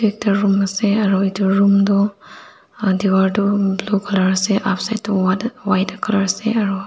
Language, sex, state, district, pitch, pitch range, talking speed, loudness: Nagamese, female, Nagaland, Dimapur, 200 Hz, 195-205 Hz, 165 wpm, -17 LUFS